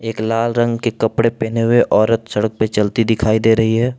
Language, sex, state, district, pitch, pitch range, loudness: Hindi, male, Jharkhand, Palamu, 115 Hz, 110-115 Hz, -16 LUFS